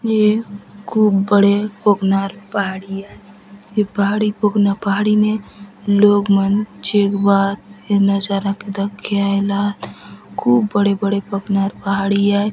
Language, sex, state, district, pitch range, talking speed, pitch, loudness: Halbi, female, Chhattisgarh, Bastar, 200-210 Hz, 130 wpm, 200 Hz, -17 LUFS